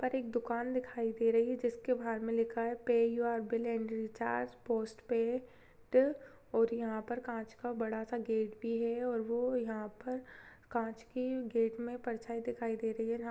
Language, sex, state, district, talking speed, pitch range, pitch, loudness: Hindi, female, Chhattisgarh, Jashpur, 190 wpm, 225-240 Hz, 230 Hz, -36 LUFS